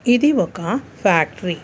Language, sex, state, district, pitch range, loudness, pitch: Telugu, female, Telangana, Hyderabad, 175-265 Hz, -18 LUFS, 240 Hz